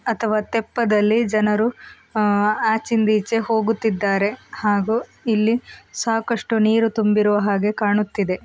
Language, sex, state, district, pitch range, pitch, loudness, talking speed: Kannada, female, Karnataka, Mysore, 210-225 Hz, 220 Hz, -20 LUFS, 100 wpm